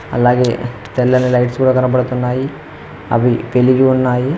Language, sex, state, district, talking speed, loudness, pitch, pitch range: Telugu, male, Telangana, Mahabubabad, 110 wpm, -14 LUFS, 125 Hz, 125-130 Hz